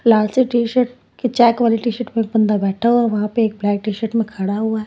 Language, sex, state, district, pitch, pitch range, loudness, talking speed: Hindi, female, Punjab, Pathankot, 225 Hz, 215-235 Hz, -18 LUFS, 285 wpm